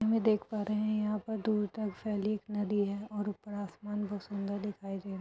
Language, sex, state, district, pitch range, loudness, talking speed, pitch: Hindi, female, Uttar Pradesh, Etah, 205-215 Hz, -35 LUFS, 265 wpm, 210 Hz